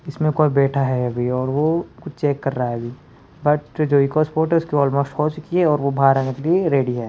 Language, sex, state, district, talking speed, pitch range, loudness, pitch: Hindi, male, Rajasthan, Jaipur, 255 wpm, 135-155 Hz, -19 LUFS, 140 Hz